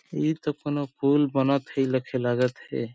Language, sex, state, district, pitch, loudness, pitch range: Sadri, male, Chhattisgarh, Jashpur, 135 Hz, -26 LUFS, 125-145 Hz